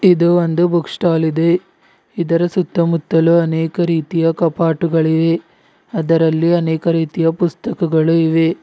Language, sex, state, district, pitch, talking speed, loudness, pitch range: Kannada, male, Karnataka, Bidar, 165 Hz, 105 wpm, -16 LUFS, 165-170 Hz